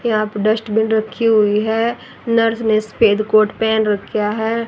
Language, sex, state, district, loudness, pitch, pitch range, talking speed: Hindi, female, Haryana, Rohtak, -16 LUFS, 220 Hz, 215-225 Hz, 165 wpm